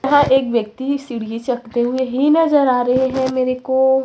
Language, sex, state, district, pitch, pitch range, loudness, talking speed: Hindi, female, Chhattisgarh, Raipur, 260 Hz, 245-270 Hz, -17 LUFS, 190 wpm